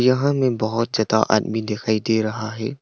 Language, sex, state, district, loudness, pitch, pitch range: Hindi, male, Arunachal Pradesh, Longding, -21 LUFS, 110 Hz, 110-120 Hz